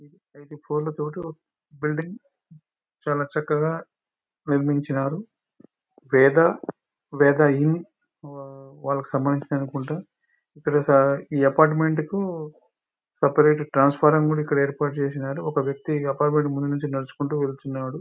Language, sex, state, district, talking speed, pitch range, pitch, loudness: Telugu, male, Telangana, Nalgonda, 95 wpm, 140-155 Hz, 150 Hz, -23 LUFS